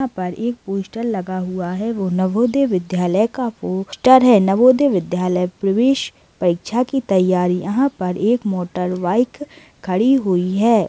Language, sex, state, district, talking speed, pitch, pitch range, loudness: Hindi, female, Chhattisgarh, Kabirdham, 150 wpm, 195 Hz, 185-245 Hz, -18 LUFS